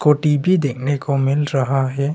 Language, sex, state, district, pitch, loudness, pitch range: Hindi, male, Arunachal Pradesh, Longding, 140 Hz, -18 LUFS, 135-150 Hz